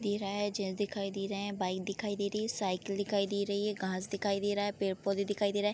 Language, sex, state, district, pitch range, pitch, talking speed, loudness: Hindi, female, Bihar, Darbhanga, 195-205 Hz, 200 Hz, 285 wpm, -34 LUFS